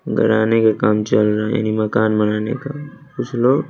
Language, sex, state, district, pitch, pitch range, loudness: Hindi, male, Bihar, West Champaran, 110 Hz, 105-125 Hz, -17 LUFS